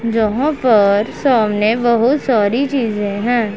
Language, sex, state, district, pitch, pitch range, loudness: Hindi, female, Punjab, Pathankot, 230 Hz, 210-255 Hz, -15 LUFS